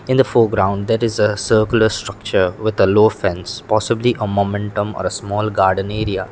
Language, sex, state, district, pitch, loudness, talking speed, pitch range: English, male, Sikkim, Gangtok, 105 Hz, -17 LUFS, 190 wpm, 100-110 Hz